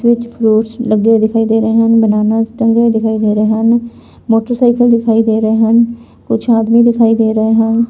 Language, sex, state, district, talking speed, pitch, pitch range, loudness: Punjabi, female, Punjab, Fazilka, 200 wpm, 225 Hz, 220-235 Hz, -11 LUFS